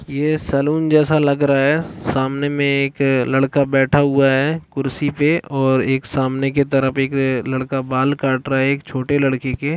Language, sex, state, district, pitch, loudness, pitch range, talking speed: Hindi, male, Chhattisgarh, Balrampur, 135 Hz, -18 LUFS, 135-145 Hz, 185 wpm